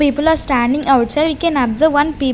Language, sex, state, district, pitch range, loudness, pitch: English, female, Punjab, Kapurthala, 265-310 Hz, -14 LUFS, 290 Hz